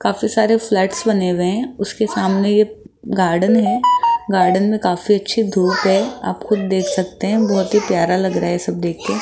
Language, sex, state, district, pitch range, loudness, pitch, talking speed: Hindi, female, Rajasthan, Jaipur, 185-220 Hz, -17 LUFS, 200 Hz, 200 wpm